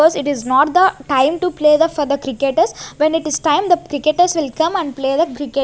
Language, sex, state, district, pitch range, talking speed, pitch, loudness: English, female, Chandigarh, Chandigarh, 280-330 Hz, 245 wpm, 305 Hz, -16 LUFS